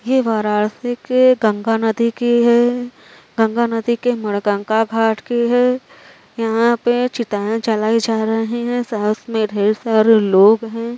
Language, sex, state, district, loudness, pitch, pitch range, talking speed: Hindi, female, Uttar Pradesh, Varanasi, -16 LUFS, 225 Hz, 220-240 Hz, 145 wpm